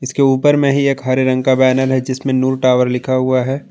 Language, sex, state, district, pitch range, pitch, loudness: Hindi, male, Jharkhand, Ranchi, 130-135 Hz, 130 Hz, -14 LUFS